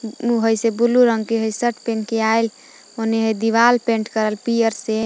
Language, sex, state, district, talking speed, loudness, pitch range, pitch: Magahi, female, Jharkhand, Palamu, 215 wpm, -19 LUFS, 220-235 Hz, 225 Hz